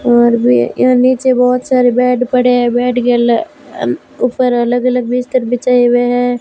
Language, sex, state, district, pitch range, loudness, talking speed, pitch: Hindi, female, Rajasthan, Bikaner, 245-250 Hz, -12 LUFS, 180 wpm, 245 Hz